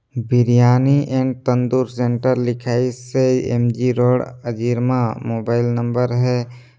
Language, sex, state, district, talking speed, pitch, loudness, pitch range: Chhattisgarhi, male, Chhattisgarh, Sarguja, 95 wpm, 125 Hz, -18 LUFS, 120-125 Hz